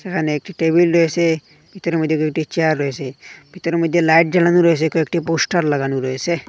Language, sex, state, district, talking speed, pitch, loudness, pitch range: Bengali, male, Assam, Hailakandi, 165 wpm, 165 Hz, -17 LUFS, 155-170 Hz